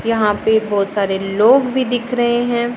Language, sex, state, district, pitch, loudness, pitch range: Hindi, female, Punjab, Pathankot, 230 Hz, -16 LUFS, 205-240 Hz